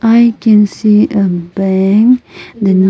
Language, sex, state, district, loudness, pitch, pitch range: English, female, Nagaland, Kohima, -10 LUFS, 210 Hz, 190-225 Hz